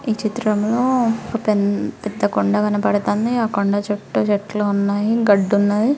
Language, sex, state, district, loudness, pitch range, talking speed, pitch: Telugu, female, Telangana, Karimnagar, -19 LUFS, 200-225 Hz, 140 wpm, 205 Hz